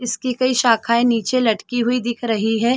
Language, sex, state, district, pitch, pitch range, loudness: Hindi, female, Chhattisgarh, Bilaspur, 240 Hz, 230-250 Hz, -18 LUFS